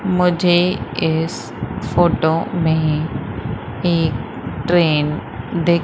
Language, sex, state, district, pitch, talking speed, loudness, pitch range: Hindi, female, Madhya Pradesh, Umaria, 160 Hz, 70 wpm, -18 LUFS, 150-175 Hz